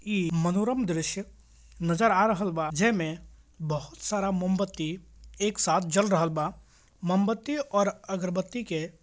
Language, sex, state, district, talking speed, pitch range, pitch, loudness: Bhojpuri, male, Bihar, Gopalganj, 145 wpm, 165-205 Hz, 190 Hz, -28 LUFS